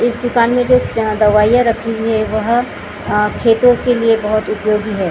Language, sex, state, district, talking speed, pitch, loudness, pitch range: Hindi, female, Maharashtra, Gondia, 200 wpm, 225 Hz, -14 LUFS, 215-240 Hz